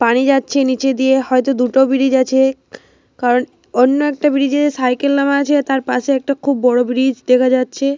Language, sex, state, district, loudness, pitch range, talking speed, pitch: Bengali, female, Jharkhand, Jamtara, -15 LUFS, 255-275 Hz, 175 wpm, 265 Hz